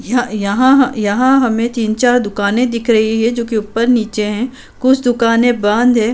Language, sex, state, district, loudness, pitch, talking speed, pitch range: Hindi, female, Uttar Pradesh, Budaun, -14 LUFS, 235 Hz, 185 wpm, 220-245 Hz